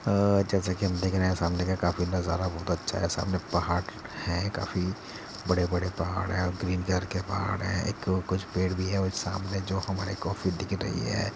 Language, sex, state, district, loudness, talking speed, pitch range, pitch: Hindi, male, Uttar Pradesh, Muzaffarnagar, -29 LUFS, 205 wpm, 90-95 Hz, 95 Hz